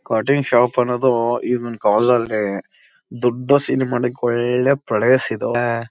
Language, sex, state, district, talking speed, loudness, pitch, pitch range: Kannada, male, Karnataka, Chamarajanagar, 100 wpm, -18 LUFS, 120 Hz, 120-125 Hz